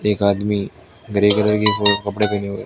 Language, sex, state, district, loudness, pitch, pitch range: Hindi, male, Rajasthan, Bikaner, -18 LUFS, 105 Hz, 100-105 Hz